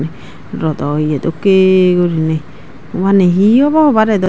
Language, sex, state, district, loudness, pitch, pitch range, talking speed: Chakma, female, Tripura, Dhalai, -12 LUFS, 185 Hz, 160-200 Hz, 125 wpm